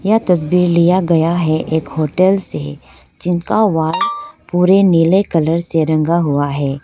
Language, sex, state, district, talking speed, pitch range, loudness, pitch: Hindi, female, Arunachal Pradesh, Lower Dibang Valley, 150 wpm, 155-185 Hz, -14 LUFS, 170 Hz